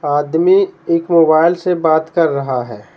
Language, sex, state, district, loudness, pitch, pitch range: Hindi, male, Bihar, Patna, -14 LUFS, 160 Hz, 145-170 Hz